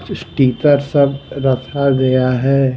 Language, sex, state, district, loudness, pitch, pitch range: Hindi, male, Bihar, Patna, -15 LUFS, 135 Hz, 130-140 Hz